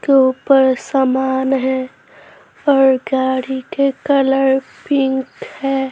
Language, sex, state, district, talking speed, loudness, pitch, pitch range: Hindi, female, Uttar Pradesh, Muzaffarnagar, 100 wpm, -16 LUFS, 265 Hz, 260-275 Hz